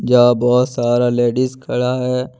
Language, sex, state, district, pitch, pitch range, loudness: Hindi, male, Jharkhand, Deoghar, 125 Hz, 120-125 Hz, -16 LUFS